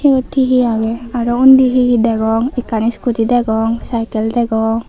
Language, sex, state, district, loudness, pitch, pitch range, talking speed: Chakma, female, Tripura, Unakoti, -14 LUFS, 235 Hz, 225-250 Hz, 170 wpm